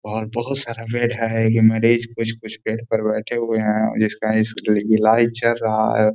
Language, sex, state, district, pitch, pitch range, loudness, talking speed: Hindi, male, Bihar, Gaya, 110 Hz, 110-115 Hz, -19 LUFS, 185 wpm